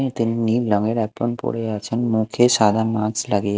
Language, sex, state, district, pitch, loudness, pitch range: Bengali, male, Odisha, Malkangiri, 115 Hz, -20 LUFS, 110-120 Hz